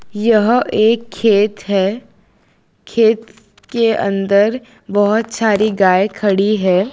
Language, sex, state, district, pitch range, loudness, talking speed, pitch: Hindi, female, Gujarat, Valsad, 200-225 Hz, -15 LUFS, 105 wpm, 215 Hz